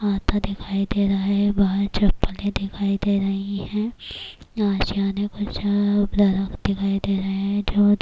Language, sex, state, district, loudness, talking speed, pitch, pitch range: Urdu, female, Bihar, Kishanganj, -22 LUFS, 135 wpm, 200 Hz, 195-205 Hz